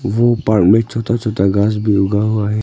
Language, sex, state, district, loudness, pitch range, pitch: Hindi, male, Arunachal Pradesh, Longding, -15 LUFS, 105-115 Hz, 110 Hz